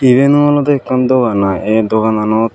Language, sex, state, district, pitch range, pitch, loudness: Chakma, female, Tripura, Unakoti, 110-135 Hz, 120 Hz, -12 LUFS